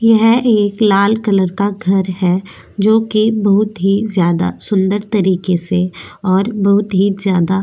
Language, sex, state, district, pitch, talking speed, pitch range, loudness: Hindi, female, Goa, North and South Goa, 200 Hz, 155 wpm, 185-210 Hz, -14 LUFS